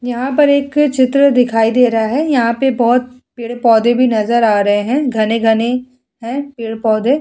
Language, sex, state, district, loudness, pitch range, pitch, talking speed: Hindi, female, Bihar, Vaishali, -14 LUFS, 225-265 Hz, 245 Hz, 165 wpm